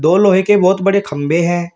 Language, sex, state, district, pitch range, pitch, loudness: Hindi, male, Uttar Pradesh, Shamli, 170-195 Hz, 185 Hz, -13 LUFS